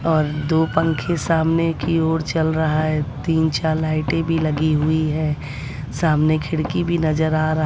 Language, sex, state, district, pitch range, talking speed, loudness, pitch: Hindi, female, Bihar, West Champaran, 155-160 Hz, 170 wpm, -20 LUFS, 155 Hz